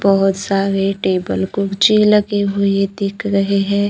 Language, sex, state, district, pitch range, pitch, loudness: Hindi, female, Maharashtra, Gondia, 195-200 Hz, 195 Hz, -16 LUFS